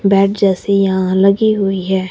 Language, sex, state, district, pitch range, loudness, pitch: Hindi, male, Himachal Pradesh, Shimla, 190-200 Hz, -14 LUFS, 195 Hz